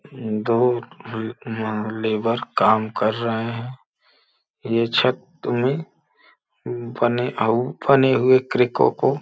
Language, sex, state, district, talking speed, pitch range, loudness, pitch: Hindi, male, Uttar Pradesh, Gorakhpur, 110 wpm, 110-125 Hz, -21 LUFS, 115 Hz